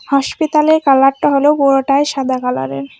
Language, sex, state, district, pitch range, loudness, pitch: Bengali, female, West Bengal, Alipurduar, 265-295 Hz, -13 LUFS, 275 Hz